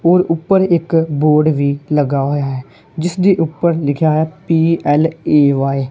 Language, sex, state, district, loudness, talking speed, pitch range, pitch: Punjabi, female, Punjab, Kapurthala, -14 LUFS, 140 wpm, 145-165 Hz, 155 Hz